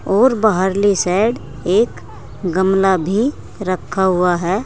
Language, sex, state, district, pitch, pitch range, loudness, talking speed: Hindi, female, Uttar Pradesh, Saharanpur, 185 Hz, 175-200 Hz, -17 LUFS, 130 wpm